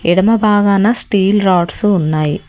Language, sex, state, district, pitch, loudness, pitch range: Telugu, female, Telangana, Hyderabad, 200 Hz, -13 LUFS, 175-210 Hz